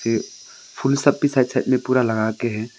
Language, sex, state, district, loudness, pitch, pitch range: Hindi, male, Arunachal Pradesh, Longding, -20 LUFS, 125 Hz, 115-135 Hz